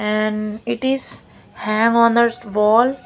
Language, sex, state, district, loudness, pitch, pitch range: English, female, Maharashtra, Gondia, -18 LUFS, 230 Hz, 215-235 Hz